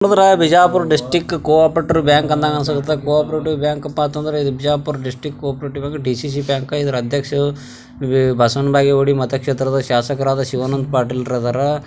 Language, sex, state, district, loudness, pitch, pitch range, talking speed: Kannada, male, Karnataka, Bijapur, -17 LUFS, 145 Hz, 135-150 Hz, 130 wpm